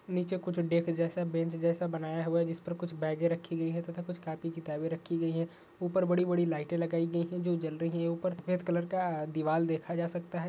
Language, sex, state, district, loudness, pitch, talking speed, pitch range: Hindi, male, Bihar, Gaya, -33 LUFS, 170 Hz, 240 wpm, 165-175 Hz